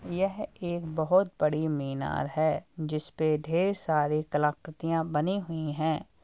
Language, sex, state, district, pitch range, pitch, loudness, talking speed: Hindi, male, Uttar Pradesh, Jalaun, 150-175 Hz, 160 Hz, -29 LUFS, 125 wpm